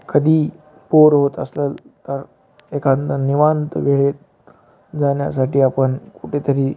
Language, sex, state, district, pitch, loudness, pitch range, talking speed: Marathi, male, Maharashtra, Aurangabad, 140 Hz, -18 LUFS, 140-150 Hz, 100 wpm